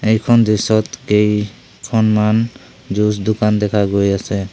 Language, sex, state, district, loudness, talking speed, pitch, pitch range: Assamese, male, Assam, Sonitpur, -16 LUFS, 105 wpm, 105 Hz, 105-110 Hz